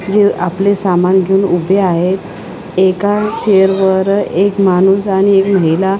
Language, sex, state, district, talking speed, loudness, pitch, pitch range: Marathi, female, Maharashtra, Washim, 150 wpm, -12 LUFS, 195 Hz, 185-200 Hz